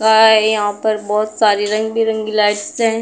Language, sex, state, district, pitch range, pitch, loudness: Hindi, female, Uttar Pradesh, Budaun, 210-220 Hz, 215 Hz, -15 LUFS